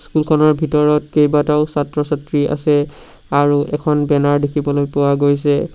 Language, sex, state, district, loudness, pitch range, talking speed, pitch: Assamese, male, Assam, Sonitpur, -16 LUFS, 145-150 Hz, 115 wpm, 150 Hz